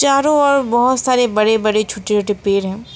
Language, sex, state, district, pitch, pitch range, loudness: Hindi, female, West Bengal, Alipurduar, 225 Hz, 210-260 Hz, -15 LUFS